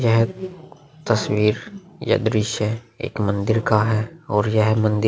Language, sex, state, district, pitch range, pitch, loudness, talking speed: Hindi, male, Uttar Pradesh, Muzaffarnagar, 105-120 Hz, 110 Hz, -21 LUFS, 140 wpm